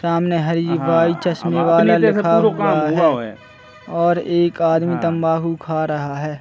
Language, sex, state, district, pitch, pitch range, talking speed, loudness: Hindi, male, Chhattisgarh, Bastar, 165 Hz, 155-170 Hz, 140 wpm, -17 LUFS